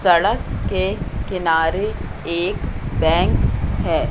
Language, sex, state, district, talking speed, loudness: Hindi, female, Madhya Pradesh, Katni, 90 wpm, -20 LUFS